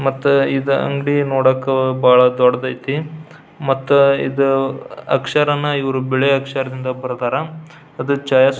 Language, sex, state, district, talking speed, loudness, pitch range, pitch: Kannada, male, Karnataka, Belgaum, 105 wpm, -16 LUFS, 130-140 Hz, 135 Hz